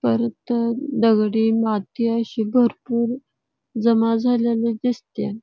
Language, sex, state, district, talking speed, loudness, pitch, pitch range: Marathi, female, Karnataka, Belgaum, 100 wpm, -21 LUFS, 230 Hz, 220-235 Hz